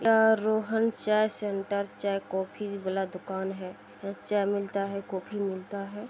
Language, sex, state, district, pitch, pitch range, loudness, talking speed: Hindi, female, Bihar, Saharsa, 200 Hz, 195-215 Hz, -30 LUFS, 155 wpm